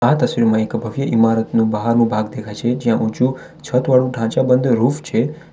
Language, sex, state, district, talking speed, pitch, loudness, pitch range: Gujarati, male, Gujarat, Valsad, 175 wpm, 120 Hz, -17 LUFS, 115-130 Hz